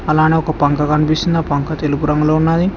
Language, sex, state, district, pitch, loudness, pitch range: Telugu, male, Telangana, Hyderabad, 155 Hz, -15 LUFS, 150-160 Hz